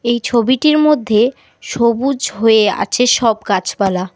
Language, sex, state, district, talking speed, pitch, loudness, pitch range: Bengali, female, West Bengal, Alipurduar, 115 wpm, 235 Hz, -14 LUFS, 210-250 Hz